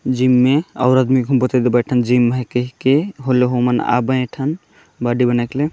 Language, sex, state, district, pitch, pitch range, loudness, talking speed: Chhattisgarhi, male, Chhattisgarh, Jashpur, 125 Hz, 125-130 Hz, -16 LUFS, 200 wpm